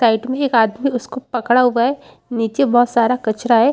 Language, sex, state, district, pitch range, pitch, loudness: Hindi, female, Chhattisgarh, Rajnandgaon, 230-260 Hz, 245 Hz, -17 LUFS